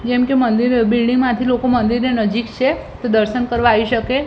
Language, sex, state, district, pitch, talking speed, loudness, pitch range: Gujarati, female, Gujarat, Gandhinagar, 240 Hz, 180 wpm, -16 LUFS, 235-250 Hz